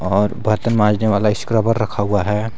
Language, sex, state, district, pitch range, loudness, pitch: Hindi, male, Jharkhand, Garhwa, 105-110 Hz, -17 LUFS, 105 Hz